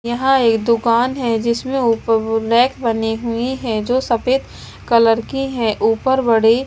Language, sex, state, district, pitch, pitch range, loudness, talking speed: Hindi, female, Delhi, New Delhi, 235 Hz, 225-255 Hz, -17 LUFS, 160 wpm